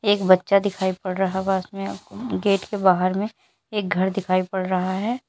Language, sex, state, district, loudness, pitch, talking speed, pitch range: Hindi, female, Uttar Pradesh, Lalitpur, -22 LUFS, 190 Hz, 205 wpm, 185-200 Hz